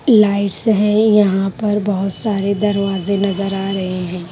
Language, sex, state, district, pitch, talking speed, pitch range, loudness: Hindi, female, Haryana, Rohtak, 200 Hz, 150 wpm, 195-210 Hz, -16 LUFS